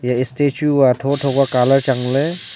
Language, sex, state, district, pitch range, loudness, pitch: Wancho, male, Arunachal Pradesh, Longding, 125-140 Hz, -16 LUFS, 135 Hz